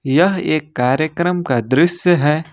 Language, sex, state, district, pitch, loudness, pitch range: Hindi, male, Jharkhand, Ranchi, 155 Hz, -16 LUFS, 135-175 Hz